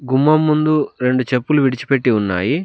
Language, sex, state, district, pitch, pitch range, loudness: Telugu, male, Telangana, Komaram Bheem, 135 Hz, 125-150 Hz, -16 LUFS